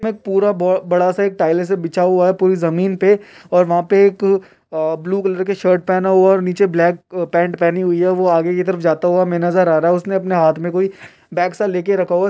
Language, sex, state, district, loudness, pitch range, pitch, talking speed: Hindi, male, Uttar Pradesh, Deoria, -16 LUFS, 175-190 Hz, 180 Hz, 260 wpm